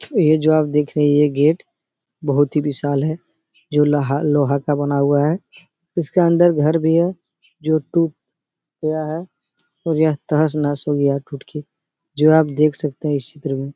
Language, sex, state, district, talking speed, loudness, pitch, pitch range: Hindi, male, Uttar Pradesh, Etah, 195 wpm, -18 LUFS, 150 Hz, 145-160 Hz